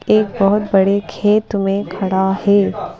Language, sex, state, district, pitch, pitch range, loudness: Hindi, female, Madhya Pradesh, Bhopal, 200 Hz, 195-205 Hz, -16 LUFS